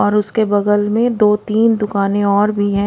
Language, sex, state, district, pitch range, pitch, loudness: Hindi, female, Odisha, Khordha, 205-215 Hz, 210 Hz, -15 LUFS